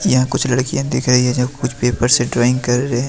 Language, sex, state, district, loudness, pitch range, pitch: Hindi, male, Jharkhand, Deoghar, -16 LUFS, 120-130 Hz, 125 Hz